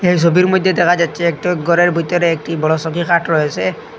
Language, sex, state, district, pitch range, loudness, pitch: Bengali, male, Assam, Hailakandi, 165-175 Hz, -15 LUFS, 170 Hz